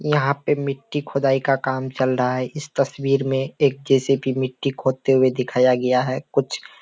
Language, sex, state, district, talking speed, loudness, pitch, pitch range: Hindi, male, Bihar, Kishanganj, 195 wpm, -21 LUFS, 135 Hz, 130-140 Hz